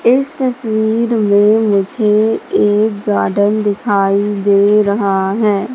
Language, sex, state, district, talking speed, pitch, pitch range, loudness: Hindi, female, Madhya Pradesh, Katni, 105 wpm, 210 Hz, 200-220 Hz, -13 LUFS